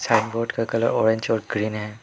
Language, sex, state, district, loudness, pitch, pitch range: Hindi, male, Arunachal Pradesh, Lower Dibang Valley, -23 LUFS, 115 Hz, 110-115 Hz